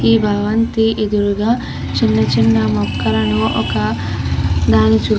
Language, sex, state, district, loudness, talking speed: Telugu, female, Andhra Pradesh, Krishna, -16 LUFS, 115 wpm